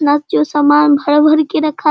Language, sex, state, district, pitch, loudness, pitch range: Hindi, female, Bihar, Sitamarhi, 295 Hz, -12 LUFS, 290-305 Hz